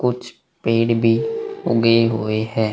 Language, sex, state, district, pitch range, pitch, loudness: Hindi, male, Bihar, Vaishali, 115-125 Hz, 115 Hz, -19 LUFS